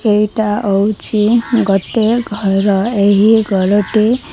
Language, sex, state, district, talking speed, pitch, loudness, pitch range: Odia, female, Odisha, Malkangiri, 85 wpm, 210 Hz, -13 LUFS, 200-225 Hz